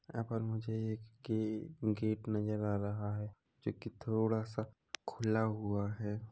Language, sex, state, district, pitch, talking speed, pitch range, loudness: Hindi, male, Chhattisgarh, Rajnandgaon, 110 Hz, 160 wpm, 105-110 Hz, -38 LUFS